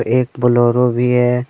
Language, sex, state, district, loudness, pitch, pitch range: Hindi, male, Jharkhand, Deoghar, -14 LUFS, 125 Hz, 120-125 Hz